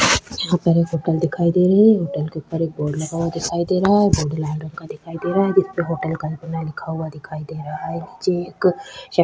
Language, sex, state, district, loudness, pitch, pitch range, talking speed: Hindi, female, Chhattisgarh, Kabirdham, -20 LUFS, 165 Hz, 155-180 Hz, 240 wpm